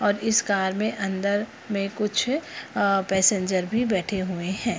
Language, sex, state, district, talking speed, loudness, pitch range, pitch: Hindi, female, Bihar, Purnia, 165 wpm, -24 LUFS, 190-220 Hz, 200 Hz